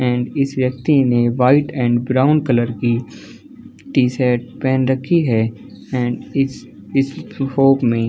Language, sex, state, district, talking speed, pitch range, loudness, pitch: Hindi, male, Chhattisgarh, Balrampur, 150 wpm, 120-135 Hz, -17 LUFS, 130 Hz